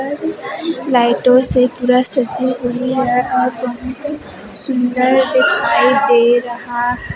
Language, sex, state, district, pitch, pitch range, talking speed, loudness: Hindi, female, Chhattisgarh, Raipur, 250 Hz, 245-265 Hz, 110 wpm, -15 LUFS